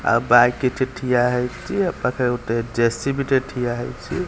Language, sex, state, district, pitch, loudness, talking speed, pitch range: Odia, male, Odisha, Khordha, 125 Hz, -20 LUFS, 170 wpm, 120-130 Hz